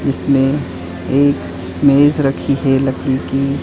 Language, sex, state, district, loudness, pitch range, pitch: Hindi, female, Uttar Pradesh, Etah, -15 LUFS, 130-140 Hz, 135 Hz